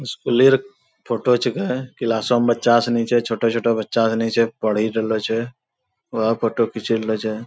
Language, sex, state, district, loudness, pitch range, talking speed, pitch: Angika, male, Bihar, Bhagalpur, -20 LUFS, 110-120 Hz, 170 wpm, 115 Hz